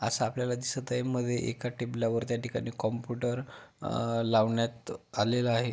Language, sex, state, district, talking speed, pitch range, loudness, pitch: Marathi, male, Maharashtra, Pune, 145 wpm, 115-125 Hz, -31 LUFS, 120 Hz